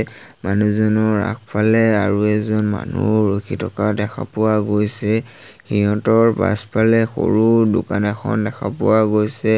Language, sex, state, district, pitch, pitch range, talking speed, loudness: Assamese, male, Assam, Sonitpur, 110 Hz, 105-110 Hz, 115 wpm, -17 LUFS